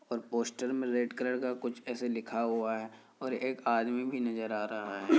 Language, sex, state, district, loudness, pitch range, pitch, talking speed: Hindi, male, Bihar, Kishanganj, -34 LUFS, 115-125 Hz, 120 Hz, 220 wpm